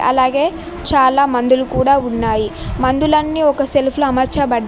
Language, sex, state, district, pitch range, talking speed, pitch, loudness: Telugu, female, Telangana, Mahabubabad, 255-290 Hz, 115 wpm, 270 Hz, -15 LUFS